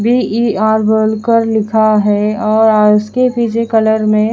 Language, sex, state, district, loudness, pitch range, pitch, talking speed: Hindi, female, Haryana, Charkhi Dadri, -12 LUFS, 215-230 Hz, 220 Hz, 125 wpm